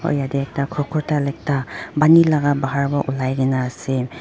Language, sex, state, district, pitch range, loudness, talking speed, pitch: Nagamese, female, Nagaland, Dimapur, 135-145 Hz, -19 LUFS, 170 wpm, 140 Hz